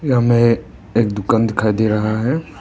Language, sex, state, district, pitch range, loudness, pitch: Hindi, male, Arunachal Pradesh, Papum Pare, 110-120 Hz, -17 LUFS, 115 Hz